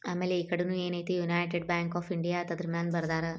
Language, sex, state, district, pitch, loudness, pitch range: Kannada, female, Karnataka, Bijapur, 175 Hz, -32 LUFS, 170-180 Hz